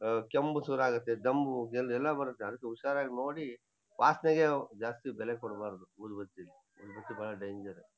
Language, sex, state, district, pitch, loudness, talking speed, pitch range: Kannada, male, Karnataka, Shimoga, 120 Hz, -34 LUFS, 145 wpm, 110-140 Hz